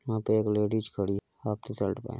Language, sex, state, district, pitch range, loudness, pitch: Hindi, male, Uttar Pradesh, Hamirpur, 105-110 Hz, -30 LUFS, 110 Hz